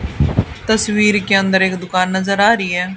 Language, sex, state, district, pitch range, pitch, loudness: Hindi, female, Haryana, Charkhi Dadri, 180-205 Hz, 190 Hz, -15 LUFS